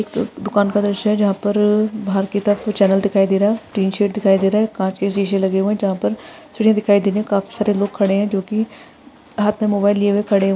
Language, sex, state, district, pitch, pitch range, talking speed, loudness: Hindi, female, Maharashtra, Solapur, 205 Hz, 195-210 Hz, 250 wpm, -18 LUFS